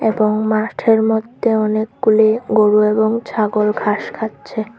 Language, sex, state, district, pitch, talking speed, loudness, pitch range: Bengali, female, Tripura, Unakoti, 220 Hz, 115 wpm, -16 LUFS, 215-220 Hz